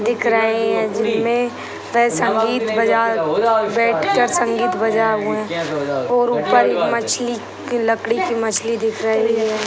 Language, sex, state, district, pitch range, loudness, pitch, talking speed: Hindi, male, Bihar, Purnia, 220-230 Hz, -18 LUFS, 225 Hz, 145 wpm